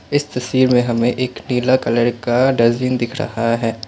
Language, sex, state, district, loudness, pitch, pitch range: Hindi, male, Assam, Kamrup Metropolitan, -17 LUFS, 125 Hz, 120-130 Hz